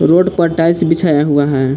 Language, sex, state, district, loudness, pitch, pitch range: Hindi, male, Jharkhand, Palamu, -13 LUFS, 165 Hz, 145-170 Hz